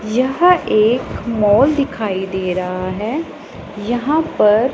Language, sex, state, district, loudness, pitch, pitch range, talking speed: Hindi, female, Punjab, Pathankot, -16 LUFS, 220 Hz, 205-275 Hz, 115 wpm